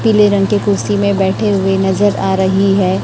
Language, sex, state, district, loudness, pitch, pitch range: Hindi, female, Chhattisgarh, Raipur, -13 LUFS, 195 Hz, 190-205 Hz